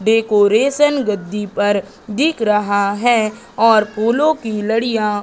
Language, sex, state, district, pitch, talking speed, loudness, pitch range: Hindi, female, Madhya Pradesh, Katni, 220 Hz, 125 wpm, -16 LUFS, 210-235 Hz